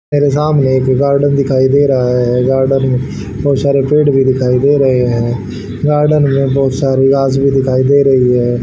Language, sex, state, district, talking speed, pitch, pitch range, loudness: Hindi, male, Haryana, Rohtak, 195 wpm, 135 Hz, 130-140 Hz, -12 LUFS